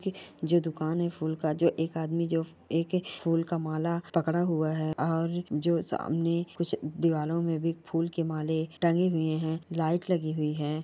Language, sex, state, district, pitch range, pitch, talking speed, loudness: Hindi, female, Bihar, Jamui, 160-170 Hz, 165 Hz, 170 wpm, -30 LUFS